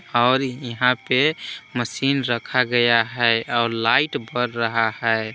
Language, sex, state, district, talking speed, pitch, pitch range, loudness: Hindi, male, Jharkhand, Palamu, 135 wpm, 120 Hz, 115-125 Hz, -20 LUFS